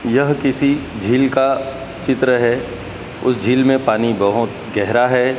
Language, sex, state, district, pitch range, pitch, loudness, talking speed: Hindi, male, Madhya Pradesh, Dhar, 115-135 Hz, 125 Hz, -17 LUFS, 145 wpm